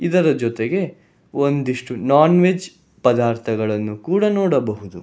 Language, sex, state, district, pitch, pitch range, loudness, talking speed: Kannada, male, Karnataka, Bangalore, 140 Hz, 115-175 Hz, -19 LUFS, 95 wpm